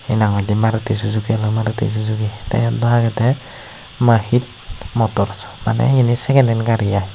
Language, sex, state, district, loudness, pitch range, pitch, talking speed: Chakma, male, Tripura, Unakoti, -17 LUFS, 105-120 Hz, 110 Hz, 170 wpm